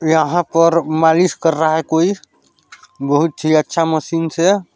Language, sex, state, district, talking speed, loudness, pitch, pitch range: Chhattisgarhi, male, Chhattisgarh, Balrampur, 150 wpm, -15 LUFS, 165 Hz, 160-170 Hz